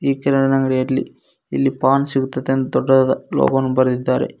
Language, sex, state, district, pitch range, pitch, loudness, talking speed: Kannada, male, Karnataka, Koppal, 130-135 Hz, 135 Hz, -18 LUFS, 110 wpm